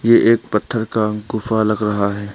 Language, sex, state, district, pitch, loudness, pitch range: Hindi, male, Arunachal Pradesh, Papum Pare, 110 Hz, -18 LUFS, 105-115 Hz